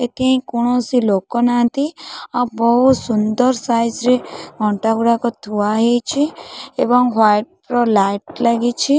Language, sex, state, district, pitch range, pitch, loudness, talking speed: Odia, female, Odisha, Khordha, 225-250 Hz, 240 Hz, -17 LUFS, 115 wpm